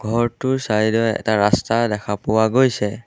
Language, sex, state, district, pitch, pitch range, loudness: Assamese, male, Assam, Sonitpur, 110 Hz, 105-120 Hz, -19 LUFS